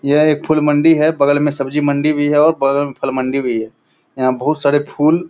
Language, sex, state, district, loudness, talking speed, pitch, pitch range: Angika, male, Bihar, Purnia, -15 LUFS, 260 wpm, 145 Hz, 135-150 Hz